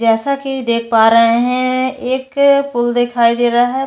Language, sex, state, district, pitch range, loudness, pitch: Hindi, female, Chhattisgarh, Bastar, 235-265 Hz, -14 LUFS, 245 Hz